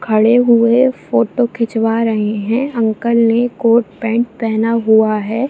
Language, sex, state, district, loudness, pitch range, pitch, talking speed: Hindi, female, Bihar, Jamui, -14 LUFS, 220-235 Hz, 230 Hz, 155 wpm